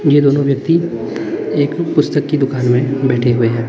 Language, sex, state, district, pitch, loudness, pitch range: Hindi, male, Himachal Pradesh, Shimla, 140 Hz, -15 LUFS, 125-145 Hz